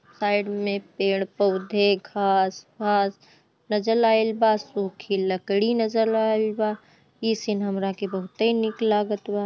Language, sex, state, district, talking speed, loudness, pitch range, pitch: Bhojpuri, female, Bihar, Gopalganj, 125 wpm, -24 LUFS, 195-220 Hz, 205 Hz